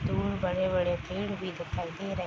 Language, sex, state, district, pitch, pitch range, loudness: Hindi, female, Bihar, East Champaran, 180 Hz, 170-185 Hz, -31 LUFS